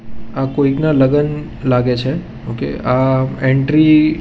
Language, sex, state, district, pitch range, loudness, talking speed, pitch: Gujarati, male, Gujarat, Gandhinagar, 130-150 Hz, -15 LUFS, 140 wpm, 135 Hz